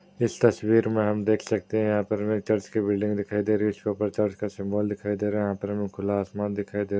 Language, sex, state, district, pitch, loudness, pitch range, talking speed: Hindi, male, Uttar Pradesh, Hamirpur, 105 Hz, -26 LUFS, 100-105 Hz, 315 wpm